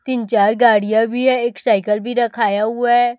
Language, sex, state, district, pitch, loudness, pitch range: Hindi, female, Chhattisgarh, Raipur, 235 Hz, -16 LUFS, 215-245 Hz